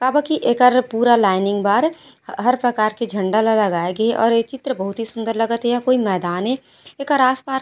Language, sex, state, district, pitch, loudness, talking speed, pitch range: Chhattisgarhi, female, Chhattisgarh, Raigarh, 235 Hz, -18 LUFS, 220 wpm, 215-255 Hz